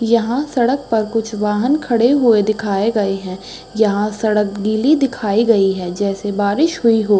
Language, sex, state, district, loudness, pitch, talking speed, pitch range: Hindi, female, Uttar Pradesh, Hamirpur, -16 LUFS, 215 Hz, 165 wpm, 205-235 Hz